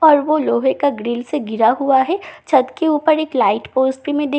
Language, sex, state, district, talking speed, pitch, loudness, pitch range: Hindi, female, Bihar, Katihar, 285 wpm, 280 Hz, -17 LUFS, 260-300 Hz